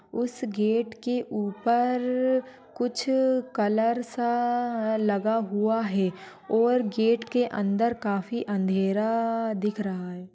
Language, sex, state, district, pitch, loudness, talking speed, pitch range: Hindi, female, Maharashtra, Nagpur, 225 Hz, -26 LUFS, 110 wpm, 210-245 Hz